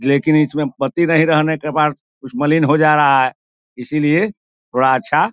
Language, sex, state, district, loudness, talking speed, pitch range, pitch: Hindi, male, Bihar, East Champaran, -16 LUFS, 190 wpm, 135-155 Hz, 150 Hz